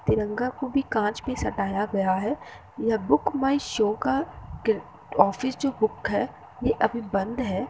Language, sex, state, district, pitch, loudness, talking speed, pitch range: Hindi, female, Uttar Pradesh, Hamirpur, 220 Hz, -26 LUFS, 170 wpm, 205-255 Hz